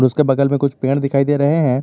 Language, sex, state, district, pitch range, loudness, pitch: Hindi, male, Jharkhand, Garhwa, 135-140 Hz, -16 LUFS, 140 Hz